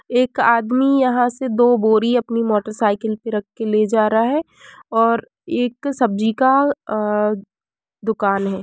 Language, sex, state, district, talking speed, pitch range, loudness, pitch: Hindi, female, Uttar Pradesh, Varanasi, 160 wpm, 215-250 Hz, -18 LUFS, 230 Hz